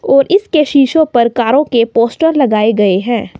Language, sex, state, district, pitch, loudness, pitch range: Hindi, female, Himachal Pradesh, Shimla, 245 Hz, -11 LUFS, 230-300 Hz